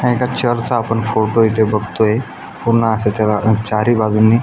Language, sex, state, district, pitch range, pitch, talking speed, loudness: Marathi, male, Maharashtra, Aurangabad, 110-120 Hz, 110 Hz, 165 wpm, -15 LUFS